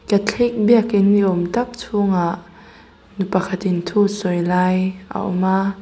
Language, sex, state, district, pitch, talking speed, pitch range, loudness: Mizo, female, Mizoram, Aizawl, 195 Hz, 145 wpm, 185-210 Hz, -18 LUFS